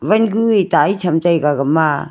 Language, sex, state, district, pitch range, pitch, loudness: Wancho, female, Arunachal Pradesh, Longding, 150-205 Hz, 170 Hz, -15 LUFS